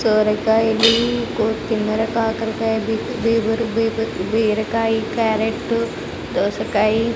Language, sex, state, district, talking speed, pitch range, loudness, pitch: Telugu, female, Andhra Pradesh, Sri Satya Sai, 75 wpm, 220-230 Hz, -19 LUFS, 225 Hz